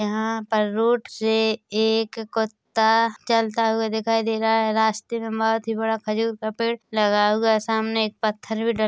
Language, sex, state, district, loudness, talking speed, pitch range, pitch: Hindi, female, Chhattisgarh, Korba, -22 LUFS, 180 wpm, 220-225 Hz, 220 Hz